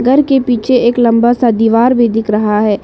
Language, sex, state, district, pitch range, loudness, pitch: Hindi, female, Arunachal Pradesh, Lower Dibang Valley, 225-250 Hz, -11 LUFS, 235 Hz